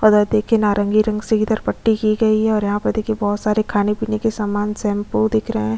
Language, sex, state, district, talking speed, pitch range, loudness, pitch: Hindi, female, Chhattisgarh, Sukma, 260 wpm, 205-220 Hz, -18 LUFS, 215 Hz